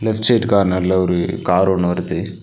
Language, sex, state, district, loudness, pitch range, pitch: Tamil, male, Tamil Nadu, Nilgiris, -17 LUFS, 90-105 Hz, 95 Hz